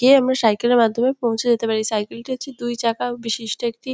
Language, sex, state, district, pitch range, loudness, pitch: Bengali, female, West Bengal, Kolkata, 225-255 Hz, -20 LUFS, 235 Hz